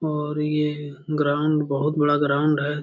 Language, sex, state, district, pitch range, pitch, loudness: Hindi, male, Bihar, Jamui, 145-150 Hz, 150 Hz, -22 LUFS